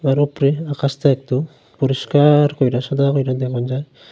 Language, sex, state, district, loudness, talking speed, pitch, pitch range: Bengali, male, Tripura, Unakoti, -18 LUFS, 145 wpm, 140 Hz, 130-145 Hz